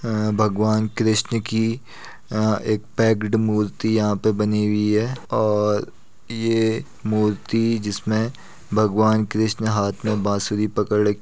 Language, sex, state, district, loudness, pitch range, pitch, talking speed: Hindi, male, Uttar Pradesh, Muzaffarnagar, -21 LUFS, 105-110 Hz, 110 Hz, 130 wpm